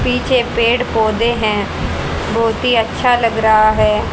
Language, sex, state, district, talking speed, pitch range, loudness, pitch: Hindi, female, Haryana, Rohtak, 145 wpm, 215-235 Hz, -15 LUFS, 230 Hz